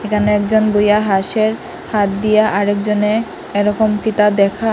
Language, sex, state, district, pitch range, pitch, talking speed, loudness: Bengali, female, Assam, Hailakandi, 205-215 Hz, 210 Hz, 140 wpm, -15 LUFS